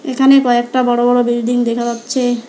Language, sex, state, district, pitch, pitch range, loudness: Bengali, female, West Bengal, Alipurduar, 245 Hz, 240-255 Hz, -14 LUFS